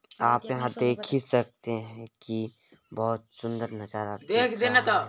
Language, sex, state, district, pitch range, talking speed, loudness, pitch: Hindi, male, Chhattisgarh, Balrampur, 110-125 Hz, 155 wpm, -28 LUFS, 115 Hz